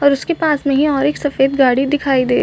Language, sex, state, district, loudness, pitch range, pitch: Hindi, female, Chhattisgarh, Raigarh, -15 LUFS, 270-290 Hz, 280 Hz